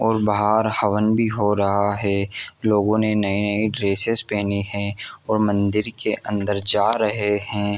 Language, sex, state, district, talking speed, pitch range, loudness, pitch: Hindi, male, Jharkhand, Jamtara, 155 wpm, 100-110 Hz, -21 LUFS, 105 Hz